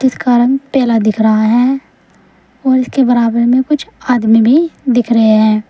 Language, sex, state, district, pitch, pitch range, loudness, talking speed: Hindi, female, Uttar Pradesh, Saharanpur, 245 Hz, 225-260 Hz, -11 LUFS, 170 wpm